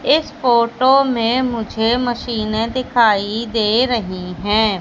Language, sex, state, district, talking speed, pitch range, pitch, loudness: Hindi, female, Madhya Pradesh, Katni, 110 wpm, 215-250 Hz, 230 Hz, -17 LUFS